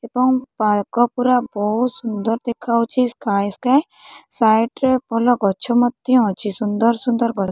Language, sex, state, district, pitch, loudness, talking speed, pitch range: Odia, female, Odisha, Khordha, 235 Hz, -18 LUFS, 150 wpm, 215-250 Hz